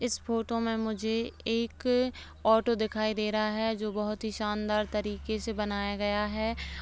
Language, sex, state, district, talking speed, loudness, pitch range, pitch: Hindi, female, Bihar, Begusarai, 165 wpm, -30 LUFS, 210-225 Hz, 220 Hz